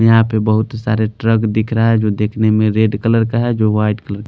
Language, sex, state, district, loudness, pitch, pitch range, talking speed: Hindi, male, Haryana, Charkhi Dadri, -15 LUFS, 110 Hz, 110-115 Hz, 265 wpm